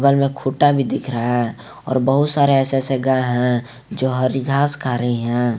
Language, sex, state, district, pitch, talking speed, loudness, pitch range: Hindi, male, Jharkhand, Garhwa, 130 Hz, 205 wpm, -18 LUFS, 120-135 Hz